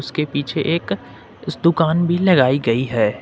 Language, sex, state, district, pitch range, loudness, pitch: Hindi, male, Jharkhand, Ranchi, 130-170 Hz, -18 LUFS, 150 Hz